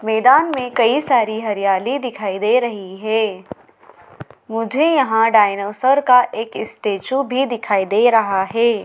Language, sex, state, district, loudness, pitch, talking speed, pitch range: Hindi, female, Madhya Pradesh, Dhar, -17 LUFS, 225 Hz, 135 wpm, 210-250 Hz